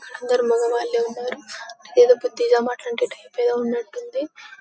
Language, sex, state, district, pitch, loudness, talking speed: Telugu, female, Telangana, Karimnagar, 250 Hz, -21 LUFS, 115 wpm